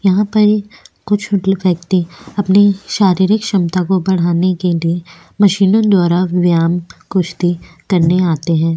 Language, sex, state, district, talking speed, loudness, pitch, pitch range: Hindi, female, Uttarakhand, Tehri Garhwal, 125 wpm, -14 LUFS, 185 Hz, 175-200 Hz